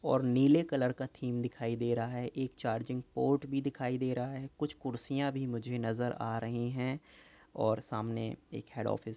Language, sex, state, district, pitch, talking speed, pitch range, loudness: Hindi, male, Uttar Pradesh, Jyotiba Phule Nagar, 125 Hz, 205 wpm, 115-135 Hz, -35 LUFS